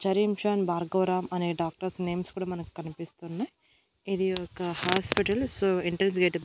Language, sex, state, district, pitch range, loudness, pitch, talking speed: Telugu, female, Andhra Pradesh, Annamaya, 175-195 Hz, -29 LUFS, 185 Hz, 150 wpm